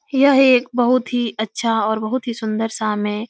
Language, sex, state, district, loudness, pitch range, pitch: Hindi, female, Uttar Pradesh, Etah, -18 LUFS, 220-255 Hz, 235 Hz